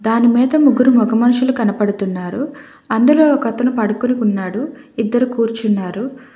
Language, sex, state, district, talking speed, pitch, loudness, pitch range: Telugu, female, Telangana, Hyderabad, 115 wpm, 240 Hz, -15 LUFS, 220-260 Hz